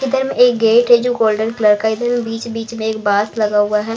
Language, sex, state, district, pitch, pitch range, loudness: Hindi, female, Maharashtra, Mumbai Suburban, 225 Hz, 215-240 Hz, -15 LUFS